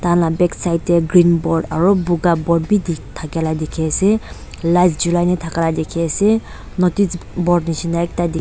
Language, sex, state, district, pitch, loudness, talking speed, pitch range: Nagamese, female, Nagaland, Dimapur, 170 Hz, -17 LUFS, 155 wpm, 165-180 Hz